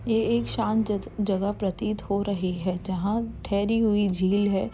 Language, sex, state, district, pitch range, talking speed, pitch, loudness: Hindi, female, Uttar Pradesh, Jalaun, 195-215 Hz, 190 wpm, 200 Hz, -26 LUFS